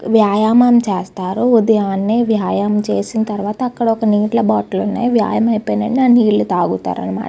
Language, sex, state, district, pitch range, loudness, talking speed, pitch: Telugu, female, Andhra Pradesh, Guntur, 210-235 Hz, -15 LUFS, 140 wpm, 220 Hz